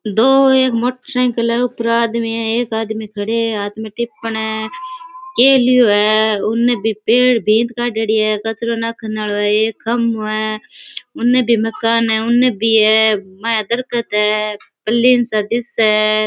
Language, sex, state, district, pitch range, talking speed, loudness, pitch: Rajasthani, female, Rajasthan, Churu, 215-240 Hz, 165 wpm, -15 LUFS, 225 Hz